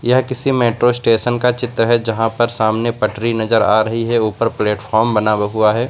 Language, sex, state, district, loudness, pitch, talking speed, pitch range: Hindi, male, Uttar Pradesh, Lucknow, -16 LUFS, 115 Hz, 205 wpm, 110-120 Hz